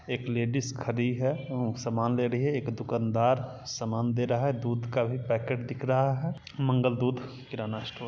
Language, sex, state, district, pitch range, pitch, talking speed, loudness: Hindi, male, Bihar, East Champaran, 120-130 Hz, 125 Hz, 195 wpm, -30 LUFS